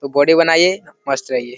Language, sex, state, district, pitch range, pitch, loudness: Hindi, male, Bihar, Jamui, 135-165 Hz, 145 Hz, -15 LUFS